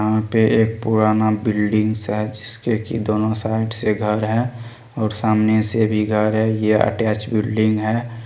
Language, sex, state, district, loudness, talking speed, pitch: Maithili, male, Bihar, Supaul, -19 LUFS, 165 wpm, 110 Hz